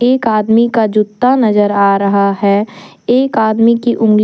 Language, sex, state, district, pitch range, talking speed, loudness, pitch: Hindi, female, Jharkhand, Deoghar, 205-235 Hz, 170 wpm, -12 LUFS, 220 Hz